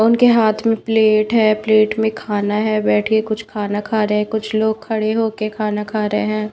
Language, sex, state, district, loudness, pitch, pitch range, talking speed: Hindi, female, Haryana, Rohtak, -17 LUFS, 215 Hz, 210-220 Hz, 220 wpm